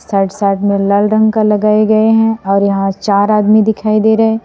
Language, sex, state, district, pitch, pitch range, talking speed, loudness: Hindi, female, Assam, Sonitpur, 215 Hz, 200-220 Hz, 215 wpm, -11 LUFS